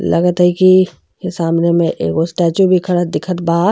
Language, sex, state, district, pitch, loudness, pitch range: Bhojpuri, female, Uttar Pradesh, Gorakhpur, 175 Hz, -14 LUFS, 170-185 Hz